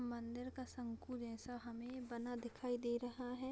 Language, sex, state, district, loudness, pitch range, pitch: Hindi, female, Bihar, Madhepura, -46 LUFS, 235-250 Hz, 245 Hz